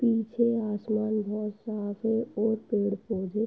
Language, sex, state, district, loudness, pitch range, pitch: Hindi, female, Uttar Pradesh, Etah, -29 LUFS, 210-225 Hz, 215 Hz